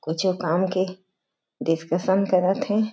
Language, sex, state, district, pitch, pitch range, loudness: Chhattisgarhi, female, Chhattisgarh, Jashpur, 185 Hz, 170-190 Hz, -23 LUFS